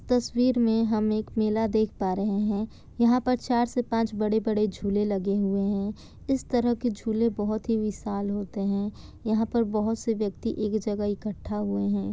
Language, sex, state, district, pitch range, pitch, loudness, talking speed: Hindi, female, Bihar, Kishanganj, 205-230 Hz, 215 Hz, -27 LUFS, 190 wpm